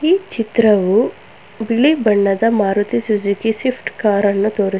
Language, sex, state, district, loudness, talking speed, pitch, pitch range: Kannada, female, Karnataka, Bangalore, -16 LUFS, 125 wpm, 215 Hz, 200-230 Hz